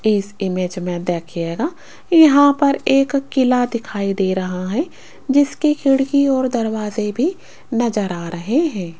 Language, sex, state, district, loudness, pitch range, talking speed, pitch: Hindi, female, Rajasthan, Jaipur, -18 LUFS, 190-280 Hz, 140 wpm, 235 Hz